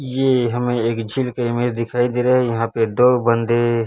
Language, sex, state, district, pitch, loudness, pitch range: Hindi, male, Chhattisgarh, Raipur, 120 Hz, -18 LUFS, 115-125 Hz